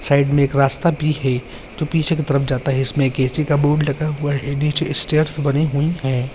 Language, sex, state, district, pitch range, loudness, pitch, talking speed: Hindi, female, Bihar, Jamui, 135-155 Hz, -17 LUFS, 145 Hz, 235 wpm